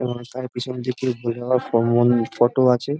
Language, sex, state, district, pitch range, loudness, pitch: Bengali, male, West Bengal, Dakshin Dinajpur, 120-125 Hz, -21 LUFS, 125 Hz